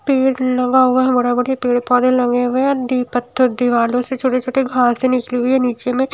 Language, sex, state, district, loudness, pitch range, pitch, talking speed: Hindi, female, Himachal Pradesh, Shimla, -16 LUFS, 245-260 Hz, 255 Hz, 195 wpm